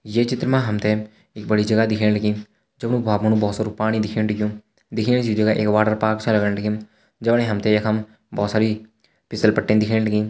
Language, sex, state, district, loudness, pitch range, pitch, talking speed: Hindi, male, Uttarakhand, Uttarkashi, -21 LUFS, 105-110 Hz, 110 Hz, 205 wpm